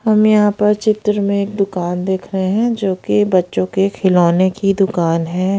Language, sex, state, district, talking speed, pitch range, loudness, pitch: Hindi, female, Haryana, Rohtak, 195 wpm, 185-210 Hz, -16 LUFS, 195 Hz